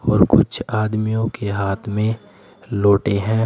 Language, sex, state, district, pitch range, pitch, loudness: Hindi, male, Uttar Pradesh, Saharanpur, 100-110 Hz, 105 Hz, -19 LUFS